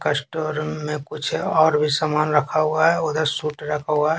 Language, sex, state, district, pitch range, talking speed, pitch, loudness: Hindi, male, Bihar, Patna, 150-155 Hz, 200 wpm, 155 Hz, -21 LUFS